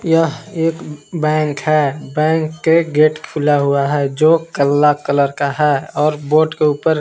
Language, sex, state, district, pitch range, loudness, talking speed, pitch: Hindi, male, Jharkhand, Palamu, 145-160 Hz, -15 LUFS, 160 wpm, 150 Hz